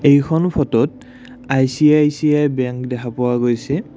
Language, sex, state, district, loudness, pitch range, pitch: Assamese, male, Assam, Kamrup Metropolitan, -17 LUFS, 125-155 Hz, 145 Hz